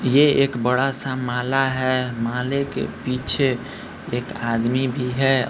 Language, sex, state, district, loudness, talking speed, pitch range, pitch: Hindi, male, Bihar, East Champaran, -21 LUFS, 130 wpm, 125-135 Hz, 130 Hz